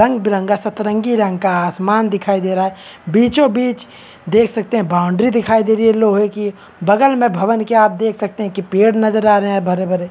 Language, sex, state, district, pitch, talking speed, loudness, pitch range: Hindi, male, Bihar, Kishanganj, 210 Hz, 210 wpm, -15 LUFS, 195-225 Hz